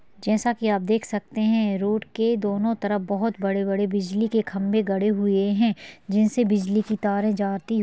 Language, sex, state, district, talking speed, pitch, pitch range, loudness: Hindi, female, Chhattisgarh, Balrampur, 185 wpm, 210 Hz, 200-220 Hz, -23 LUFS